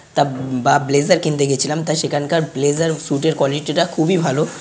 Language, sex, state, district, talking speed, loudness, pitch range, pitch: Bengali, male, West Bengal, North 24 Parganas, 170 wpm, -17 LUFS, 140-160 Hz, 150 Hz